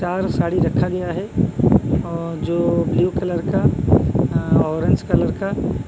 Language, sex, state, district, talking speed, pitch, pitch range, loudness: Hindi, male, Odisha, Malkangiri, 145 wpm, 170 Hz, 165-180 Hz, -19 LUFS